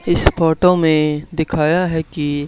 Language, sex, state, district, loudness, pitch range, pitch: Hindi, male, Haryana, Charkhi Dadri, -16 LUFS, 150-165 Hz, 160 Hz